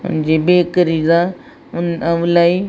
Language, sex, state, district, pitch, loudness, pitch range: Tulu, female, Karnataka, Dakshina Kannada, 170 Hz, -15 LUFS, 170-180 Hz